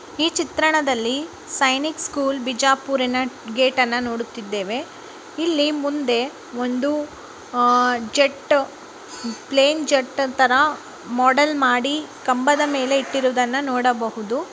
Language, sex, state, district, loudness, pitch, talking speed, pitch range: Kannada, female, Karnataka, Bijapur, -20 LUFS, 270 Hz, 85 wpm, 250-295 Hz